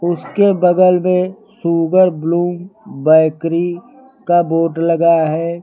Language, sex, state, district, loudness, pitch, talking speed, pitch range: Hindi, male, Uttar Pradesh, Lucknow, -14 LUFS, 175 Hz, 105 wpm, 165-185 Hz